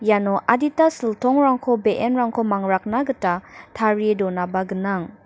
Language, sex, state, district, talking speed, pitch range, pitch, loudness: Garo, female, Meghalaya, North Garo Hills, 105 wpm, 195-245 Hz, 215 Hz, -20 LUFS